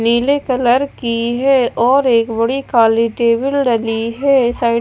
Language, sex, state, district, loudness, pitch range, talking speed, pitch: Hindi, female, Bihar, West Champaran, -14 LUFS, 230-265 Hz, 160 wpm, 240 Hz